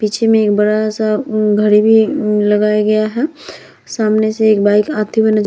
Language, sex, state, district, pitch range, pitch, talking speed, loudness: Hindi, female, Bihar, Vaishali, 210-220 Hz, 215 Hz, 220 wpm, -13 LUFS